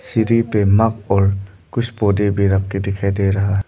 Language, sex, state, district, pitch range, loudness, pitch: Hindi, male, Arunachal Pradesh, Lower Dibang Valley, 100-110 Hz, -17 LUFS, 100 Hz